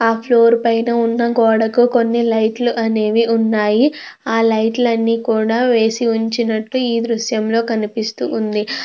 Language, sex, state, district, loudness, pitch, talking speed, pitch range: Telugu, female, Andhra Pradesh, Krishna, -16 LUFS, 230 Hz, 130 wpm, 225-235 Hz